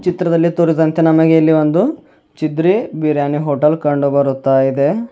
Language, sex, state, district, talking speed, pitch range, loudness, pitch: Kannada, male, Karnataka, Bidar, 105 wpm, 145-170 Hz, -14 LUFS, 155 Hz